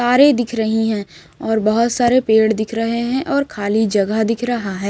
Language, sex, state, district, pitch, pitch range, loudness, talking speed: Hindi, female, Bihar, Kaimur, 225 Hz, 215-240 Hz, -17 LUFS, 210 wpm